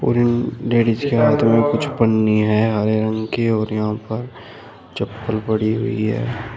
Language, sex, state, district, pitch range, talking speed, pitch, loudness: Hindi, male, Uttar Pradesh, Shamli, 110-115 Hz, 165 wpm, 110 Hz, -19 LUFS